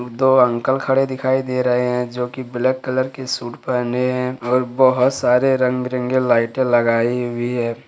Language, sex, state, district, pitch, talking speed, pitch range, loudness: Hindi, male, Jharkhand, Ranchi, 125 Hz, 185 wpm, 125-130 Hz, -18 LUFS